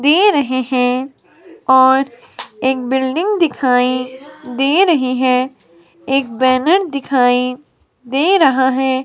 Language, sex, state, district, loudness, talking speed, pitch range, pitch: Hindi, female, Himachal Pradesh, Shimla, -15 LUFS, 105 wpm, 255-285 Hz, 260 Hz